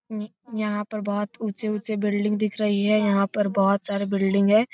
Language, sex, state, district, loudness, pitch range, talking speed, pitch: Hindi, female, Bihar, Jamui, -24 LUFS, 200-215 Hz, 165 wpm, 210 Hz